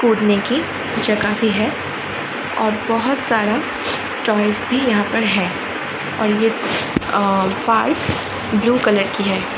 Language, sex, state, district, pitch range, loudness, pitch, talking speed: Hindi, female, Uttar Pradesh, Varanasi, 210-230 Hz, -18 LUFS, 220 Hz, 125 wpm